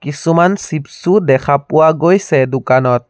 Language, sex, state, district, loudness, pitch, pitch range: Assamese, male, Assam, Sonitpur, -13 LUFS, 150 Hz, 135-170 Hz